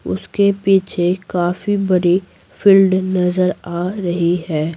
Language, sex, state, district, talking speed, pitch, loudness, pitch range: Hindi, female, Bihar, Patna, 115 wpm, 180 Hz, -16 LUFS, 175-195 Hz